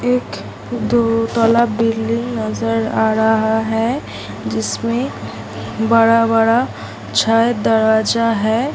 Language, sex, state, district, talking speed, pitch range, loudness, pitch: Hindi, female, Bihar, Samastipur, 90 wpm, 220-230 Hz, -16 LUFS, 225 Hz